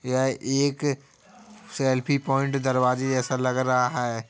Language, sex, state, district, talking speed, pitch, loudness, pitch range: Hindi, female, Uttar Pradesh, Jalaun, 125 wpm, 130 Hz, -24 LUFS, 130-140 Hz